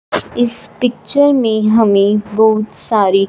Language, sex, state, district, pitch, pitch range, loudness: Hindi, female, Punjab, Fazilka, 220 Hz, 210-235 Hz, -13 LUFS